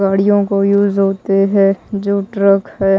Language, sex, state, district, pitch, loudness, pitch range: Hindi, female, Odisha, Malkangiri, 195 Hz, -14 LUFS, 195-200 Hz